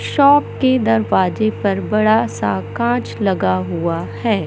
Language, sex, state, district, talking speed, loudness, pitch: Hindi, male, Madhya Pradesh, Katni, 135 wpm, -17 LUFS, 195 Hz